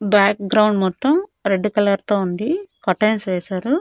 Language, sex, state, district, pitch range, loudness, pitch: Telugu, female, Andhra Pradesh, Annamaya, 195-225 Hz, -19 LUFS, 205 Hz